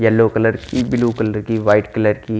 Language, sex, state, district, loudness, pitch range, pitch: Hindi, male, Haryana, Charkhi Dadri, -17 LUFS, 105-115 Hz, 110 Hz